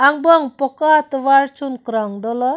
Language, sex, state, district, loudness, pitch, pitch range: Karbi, female, Assam, Karbi Anglong, -16 LUFS, 275 Hz, 255-290 Hz